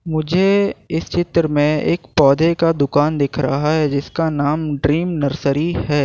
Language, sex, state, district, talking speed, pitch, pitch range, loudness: Hindi, male, Gujarat, Valsad, 160 wpm, 150 Hz, 145-165 Hz, -17 LUFS